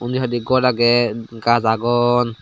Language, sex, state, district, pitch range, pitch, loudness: Chakma, male, Tripura, Dhalai, 115-120 Hz, 120 Hz, -17 LUFS